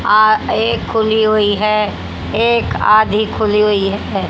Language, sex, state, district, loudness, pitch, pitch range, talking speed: Hindi, female, Haryana, Jhajjar, -14 LUFS, 215 Hz, 210-220 Hz, 125 wpm